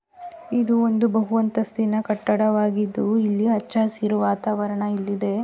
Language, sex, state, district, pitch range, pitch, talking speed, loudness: Kannada, female, Karnataka, Raichur, 210-225 Hz, 215 Hz, 110 wpm, -22 LUFS